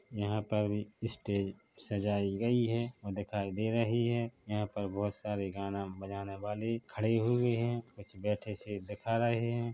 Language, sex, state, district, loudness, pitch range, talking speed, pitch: Hindi, male, Chhattisgarh, Bilaspur, -35 LUFS, 100-115 Hz, 170 wpm, 105 Hz